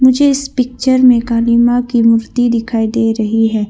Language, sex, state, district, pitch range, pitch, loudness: Hindi, female, Arunachal Pradesh, Longding, 225-250 Hz, 235 Hz, -12 LUFS